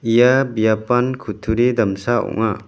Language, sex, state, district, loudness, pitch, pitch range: Garo, male, Meghalaya, West Garo Hills, -18 LUFS, 115 Hz, 110-125 Hz